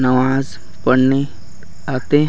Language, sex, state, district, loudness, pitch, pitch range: Hindi, male, Chhattisgarh, Raigarh, -17 LUFS, 130 Hz, 105-135 Hz